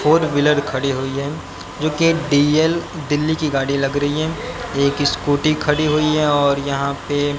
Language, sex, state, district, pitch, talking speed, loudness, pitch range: Hindi, male, Haryana, Jhajjar, 145 Hz, 180 wpm, -18 LUFS, 140-155 Hz